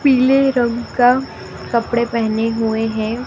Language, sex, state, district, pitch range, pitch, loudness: Hindi, female, Madhya Pradesh, Dhar, 225-250 Hz, 235 Hz, -17 LUFS